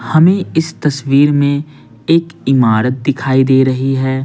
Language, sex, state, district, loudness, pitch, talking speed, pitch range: Hindi, male, Bihar, Patna, -13 LUFS, 135 Hz, 140 wpm, 130-155 Hz